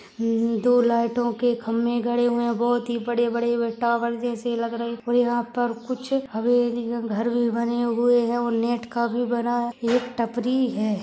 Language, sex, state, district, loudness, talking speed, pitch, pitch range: Hindi, female, Rajasthan, Churu, -23 LUFS, 175 wpm, 235 Hz, 235-240 Hz